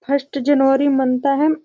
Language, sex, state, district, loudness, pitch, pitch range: Hindi, female, Bihar, Gopalganj, -17 LUFS, 275 Hz, 270-285 Hz